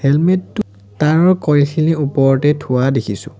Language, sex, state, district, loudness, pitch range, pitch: Assamese, male, Assam, Sonitpur, -15 LUFS, 135-160 Hz, 145 Hz